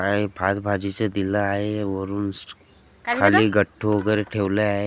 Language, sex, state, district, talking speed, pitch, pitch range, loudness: Marathi, male, Maharashtra, Gondia, 135 wpm, 100 Hz, 100-105 Hz, -22 LUFS